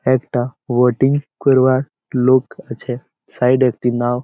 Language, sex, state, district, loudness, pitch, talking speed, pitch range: Bengali, male, West Bengal, Malda, -17 LUFS, 130 Hz, 125 wpm, 125-130 Hz